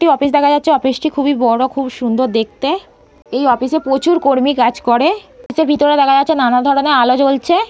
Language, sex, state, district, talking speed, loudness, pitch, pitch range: Bengali, female, West Bengal, North 24 Parganas, 220 wpm, -14 LUFS, 275 Hz, 255-295 Hz